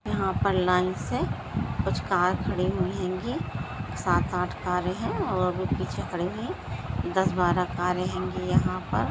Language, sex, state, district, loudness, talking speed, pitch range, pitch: Hindi, female, Goa, North and South Goa, -27 LUFS, 145 wpm, 180-185 Hz, 180 Hz